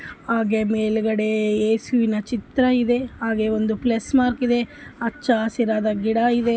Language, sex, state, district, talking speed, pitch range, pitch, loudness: Kannada, female, Karnataka, Bellary, 120 wpm, 220-240 Hz, 225 Hz, -21 LUFS